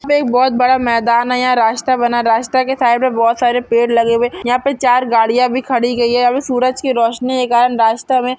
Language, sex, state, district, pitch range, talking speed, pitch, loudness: Hindi, female, Maharashtra, Solapur, 235-255 Hz, 230 wpm, 245 Hz, -14 LUFS